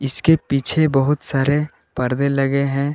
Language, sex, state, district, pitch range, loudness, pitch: Hindi, male, Jharkhand, Palamu, 135-145 Hz, -18 LUFS, 140 Hz